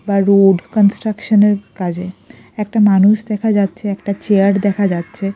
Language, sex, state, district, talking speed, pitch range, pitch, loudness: Bengali, female, Odisha, Khordha, 145 wpm, 195-210 Hz, 200 Hz, -14 LUFS